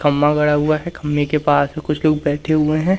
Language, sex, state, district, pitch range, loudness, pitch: Hindi, male, Madhya Pradesh, Umaria, 145-155 Hz, -17 LUFS, 150 Hz